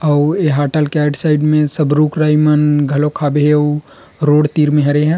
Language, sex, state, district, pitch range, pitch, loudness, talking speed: Chhattisgarhi, male, Chhattisgarh, Rajnandgaon, 145-150 Hz, 150 Hz, -14 LUFS, 230 wpm